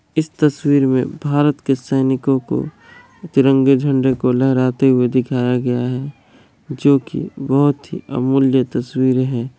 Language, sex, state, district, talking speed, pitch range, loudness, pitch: Hindi, male, Bihar, Kishanganj, 135 wpm, 130-145 Hz, -17 LUFS, 135 Hz